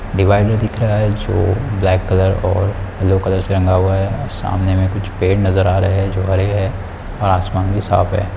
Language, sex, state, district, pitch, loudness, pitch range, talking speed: Hindi, male, Bihar, Kishanganj, 95 Hz, -16 LUFS, 95-100 Hz, 210 wpm